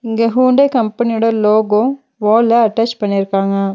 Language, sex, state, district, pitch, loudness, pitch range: Tamil, female, Tamil Nadu, Nilgiris, 225 Hz, -14 LUFS, 210-235 Hz